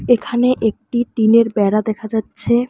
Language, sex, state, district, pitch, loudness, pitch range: Bengali, female, West Bengal, Alipurduar, 230 Hz, -17 LUFS, 220-240 Hz